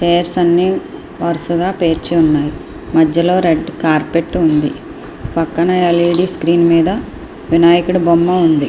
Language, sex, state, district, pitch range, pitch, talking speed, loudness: Telugu, female, Andhra Pradesh, Srikakulam, 160-175 Hz, 170 Hz, 105 wpm, -14 LUFS